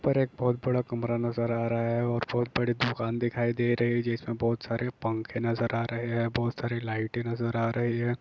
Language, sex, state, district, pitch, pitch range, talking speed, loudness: Hindi, male, Bihar, East Champaran, 120 Hz, 115-120 Hz, 235 wpm, -29 LUFS